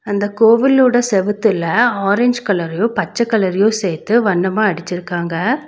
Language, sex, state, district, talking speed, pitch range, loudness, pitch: Tamil, female, Tamil Nadu, Nilgiris, 105 wpm, 185-235 Hz, -15 LUFS, 210 Hz